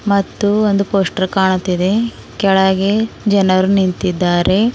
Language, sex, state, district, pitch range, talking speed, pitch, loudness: Kannada, female, Karnataka, Bidar, 185-205 Hz, 90 wpm, 195 Hz, -15 LUFS